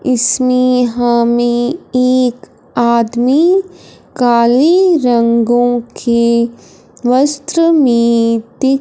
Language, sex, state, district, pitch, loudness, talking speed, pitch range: Hindi, female, Punjab, Fazilka, 245 Hz, -12 LUFS, 70 wpm, 235-265 Hz